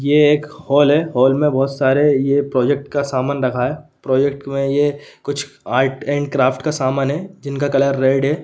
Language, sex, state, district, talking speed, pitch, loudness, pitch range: Hindi, male, Chhattisgarh, Rajnandgaon, 200 wpm, 140 Hz, -17 LUFS, 135-145 Hz